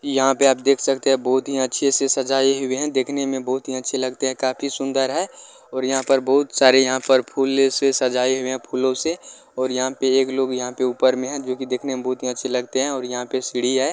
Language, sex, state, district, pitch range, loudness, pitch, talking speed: Maithili, male, Bihar, Vaishali, 130-135 Hz, -20 LUFS, 130 Hz, 255 wpm